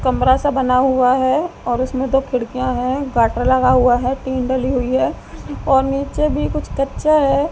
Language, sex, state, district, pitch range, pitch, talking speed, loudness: Hindi, female, Haryana, Jhajjar, 255-275 Hz, 260 Hz, 190 wpm, -17 LUFS